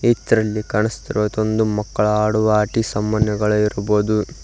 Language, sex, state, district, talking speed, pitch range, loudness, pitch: Kannada, male, Karnataka, Koppal, 95 wpm, 105-110 Hz, -19 LUFS, 105 Hz